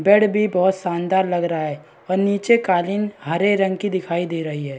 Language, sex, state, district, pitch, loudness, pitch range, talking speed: Hindi, female, Bihar, East Champaran, 185 Hz, -20 LUFS, 170-200 Hz, 225 wpm